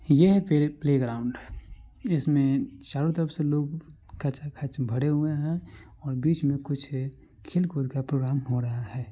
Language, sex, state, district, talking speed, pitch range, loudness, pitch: Maithili, male, Bihar, Supaul, 165 wpm, 135-155 Hz, -27 LUFS, 140 Hz